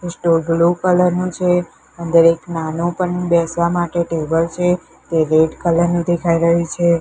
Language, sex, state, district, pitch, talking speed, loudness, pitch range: Gujarati, female, Gujarat, Gandhinagar, 170 Hz, 180 wpm, -17 LUFS, 165-175 Hz